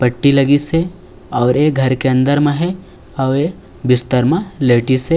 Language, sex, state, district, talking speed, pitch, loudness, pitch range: Chhattisgarhi, male, Chhattisgarh, Raigarh, 185 wpm, 135 Hz, -15 LUFS, 125-150 Hz